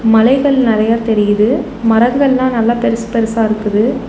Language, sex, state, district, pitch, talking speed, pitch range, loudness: Tamil, female, Tamil Nadu, Nilgiris, 230 Hz, 120 wpm, 220-255 Hz, -13 LUFS